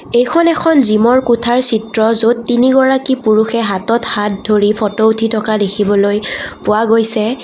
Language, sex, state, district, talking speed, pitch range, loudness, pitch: Assamese, female, Assam, Kamrup Metropolitan, 135 wpm, 215-245 Hz, -13 LUFS, 225 Hz